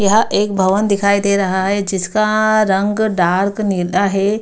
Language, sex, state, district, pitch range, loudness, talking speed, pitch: Hindi, female, Bihar, Kishanganj, 190-210 Hz, -15 LUFS, 165 wpm, 200 Hz